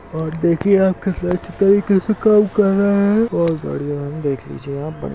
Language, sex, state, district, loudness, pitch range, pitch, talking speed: Hindi, male, Chhattisgarh, Balrampur, -17 LUFS, 160-200 Hz, 185 Hz, 185 wpm